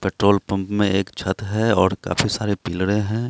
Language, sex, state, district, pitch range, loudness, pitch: Hindi, male, Bihar, Katihar, 95-105 Hz, -21 LUFS, 100 Hz